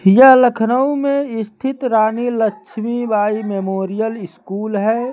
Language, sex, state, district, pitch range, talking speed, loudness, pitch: Hindi, male, Uttar Pradesh, Lucknow, 210-250 Hz, 105 wpm, -16 LUFS, 225 Hz